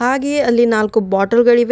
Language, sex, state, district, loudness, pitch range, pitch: Kannada, female, Karnataka, Bidar, -14 LUFS, 220-250 Hz, 235 Hz